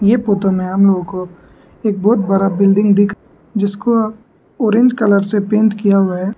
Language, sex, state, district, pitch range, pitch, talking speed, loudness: Hindi, male, Arunachal Pradesh, Lower Dibang Valley, 195-215 Hz, 200 Hz, 180 wpm, -14 LUFS